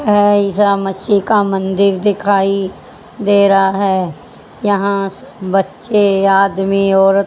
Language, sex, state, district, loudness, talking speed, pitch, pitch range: Hindi, female, Haryana, Rohtak, -14 LUFS, 105 wpm, 195 Hz, 195-205 Hz